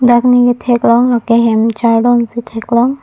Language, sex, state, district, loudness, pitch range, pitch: Karbi, female, Assam, Karbi Anglong, -11 LUFS, 230-245 Hz, 235 Hz